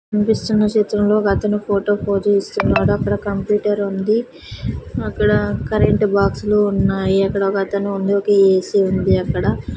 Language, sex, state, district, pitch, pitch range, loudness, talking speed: Telugu, female, Andhra Pradesh, Sri Satya Sai, 205 Hz, 195-210 Hz, -17 LUFS, 135 wpm